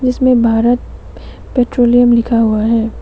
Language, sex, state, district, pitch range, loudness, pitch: Hindi, female, West Bengal, Alipurduar, 230-245 Hz, -12 LUFS, 240 Hz